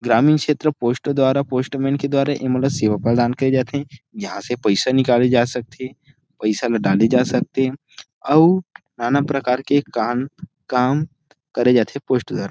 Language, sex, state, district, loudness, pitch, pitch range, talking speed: Chhattisgarhi, male, Chhattisgarh, Rajnandgaon, -19 LUFS, 130 Hz, 120-140 Hz, 165 wpm